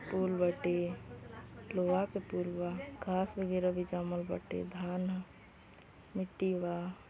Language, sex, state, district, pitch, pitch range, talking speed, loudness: Bhojpuri, female, Uttar Pradesh, Gorakhpur, 180 Hz, 175-185 Hz, 125 wpm, -36 LUFS